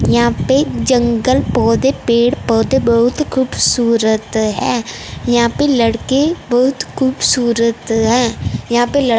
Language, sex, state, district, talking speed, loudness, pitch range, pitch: Hindi, female, Punjab, Fazilka, 120 wpm, -14 LUFS, 230-260 Hz, 240 Hz